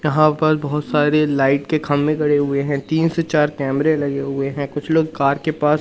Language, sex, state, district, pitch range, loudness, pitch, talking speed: Hindi, male, Madhya Pradesh, Umaria, 140-155 Hz, -18 LUFS, 150 Hz, 225 wpm